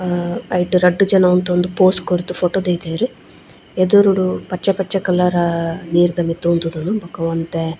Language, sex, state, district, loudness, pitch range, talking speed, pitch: Tulu, female, Karnataka, Dakshina Kannada, -17 LUFS, 170-185 Hz, 140 wpm, 180 Hz